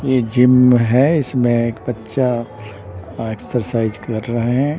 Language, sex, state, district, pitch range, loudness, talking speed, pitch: Hindi, male, Bihar, Patna, 110-125 Hz, -17 LUFS, 140 wpm, 120 Hz